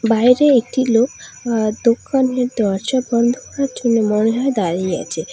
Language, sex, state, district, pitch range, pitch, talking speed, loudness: Bengali, female, West Bengal, Alipurduar, 215-255 Hz, 235 Hz, 145 wpm, -17 LUFS